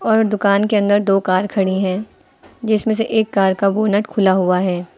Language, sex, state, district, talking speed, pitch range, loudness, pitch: Hindi, female, Uttar Pradesh, Lucknow, 205 wpm, 190-215 Hz, -16 LUFS, 200 Hz